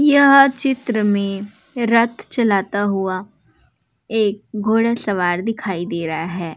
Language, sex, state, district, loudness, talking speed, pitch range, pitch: Hindi, female, Uttar Pradesh, Jalaun, -18 LUFS, 110 wpm, 190-235 Hz, 210 Hz